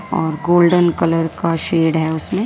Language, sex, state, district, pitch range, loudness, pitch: Hindi, female, Delhi, New Delhi, 160-175 Hz, -16 LUFS, 165 Hz